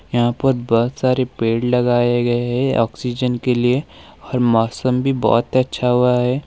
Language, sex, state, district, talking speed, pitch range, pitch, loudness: Hindi, male, Uttar Pradesh, Lalitpur, 165 wpm, 120-125 Hz, 125 Hz, -18 LUFS